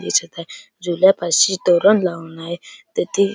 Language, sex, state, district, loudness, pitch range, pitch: Marathi, male, Maharashtra, Chandrapur, -17 LUFS, 170-190 Hz, 175 Hz